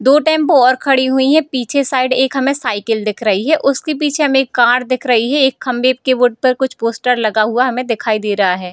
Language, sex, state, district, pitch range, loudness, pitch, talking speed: Hindi, female, Bihar, Darbhanga, 230-270 Hz, -14 LUFS, 255 Hz, 245 wpm